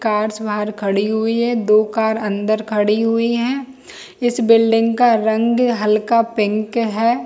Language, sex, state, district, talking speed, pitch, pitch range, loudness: Hindi, female, Jharkhand, Jamtara, 140 wpm, 225 Hz, 215-235 Hz, -17 LUFS